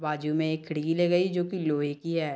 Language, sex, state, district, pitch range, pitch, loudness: Hindi, female, Chhattisgarh, Bilaspur, 150-175 Hz, 160 Hz, -28 LUFS